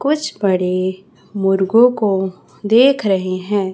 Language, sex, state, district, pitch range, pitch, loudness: Hindi, male, Chhattisgarh, Raipur, 190-225 Hz, 195 Hz, -16 LUFS